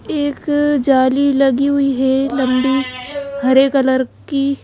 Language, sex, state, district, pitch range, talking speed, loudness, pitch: Hindi, female, Madhya Pradesh, Bhopal, 260-280 Hz, 130 wpm, -15 LUFS, 275 Hz